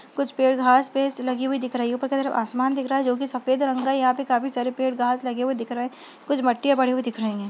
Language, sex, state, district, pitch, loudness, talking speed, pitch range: Hindi, female, Uttar Pradesh, Budaun, 260 Hz, -23 LUFS, 310 wpm, 250-270 Hz